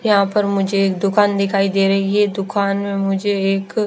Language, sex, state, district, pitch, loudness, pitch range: Hindi, female, Chandigarh, Chandigarh, 200 Hz, -17 LUFS, 195-205 Hz